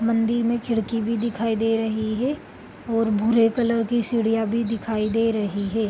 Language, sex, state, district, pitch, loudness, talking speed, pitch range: Hindi, female, Bihar, Gopalganj, 225 Hz, -23 LUFS, 195 wpm, 220-230 Hz